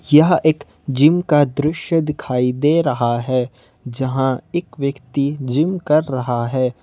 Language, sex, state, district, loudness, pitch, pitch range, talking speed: Hindi, male, Jharkhand, Ranchi, -18 LUFS, 140 Hz, 125-155 Hz, 140 wpm